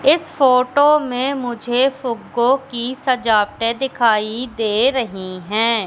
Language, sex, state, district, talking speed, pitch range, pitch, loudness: Hindi, female, Madhya Pradesh, Katni, 110 wpm, 225-265 Hz, 245 Hz, -18 LUFS